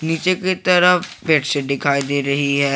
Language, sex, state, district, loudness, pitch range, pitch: Hindi, male, Jharkhand, Garhwa, -17 LUFS, 140-180 Hz, 145 Hz